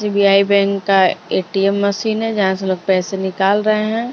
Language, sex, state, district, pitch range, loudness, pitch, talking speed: Hindi, female, Maharashtra, Mumbai Suburban, 190-210 Hz, -16 LUFS, 200 Hz, 190 wpm